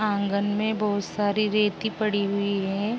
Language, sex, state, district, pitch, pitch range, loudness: Hindi, female, Uttar Pradesh, Jalaun, 205 Hz, 200-215 Hz, -25 LUFS